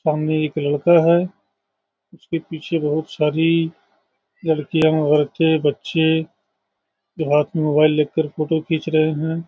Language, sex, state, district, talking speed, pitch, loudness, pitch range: Hindi, male, Bihar, Saharsa, 135 wpm, 155 Hz, -19 LUFS, 150-160 Hz